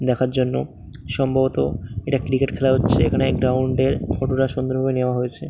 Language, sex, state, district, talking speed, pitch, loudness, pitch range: Bengali, male, West Bengal, Paschim Medinipur, 185 wpm, 130 Hz, -21 LUFS, 125-135 Hz